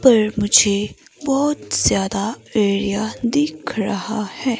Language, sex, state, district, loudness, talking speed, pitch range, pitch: Hindi, female, Himachal Pradesh, Shimla, -19 LUFS, 105 wpm, 205-265 Hz, 215 Hz